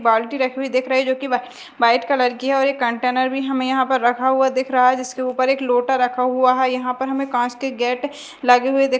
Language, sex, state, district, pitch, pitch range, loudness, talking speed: Hindi, female, Madhya Pradesh, Dhar, 255 Hz, 250-265 Hz, -19 LUFS, 275 wpm